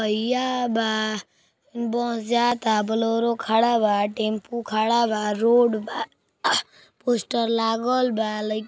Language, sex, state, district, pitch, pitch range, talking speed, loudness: Hindi, female, Uttar Pradesh, Deoria, 225 Hz, 215-240 Hz, 120 wpm, -23 LUFS